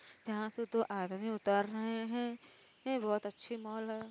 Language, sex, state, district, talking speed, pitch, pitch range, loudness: Hindi, female, Uttar Pradesh, Varanasi, 175 wpm, 220 Hz, 210-235 Hz, -38 LUFS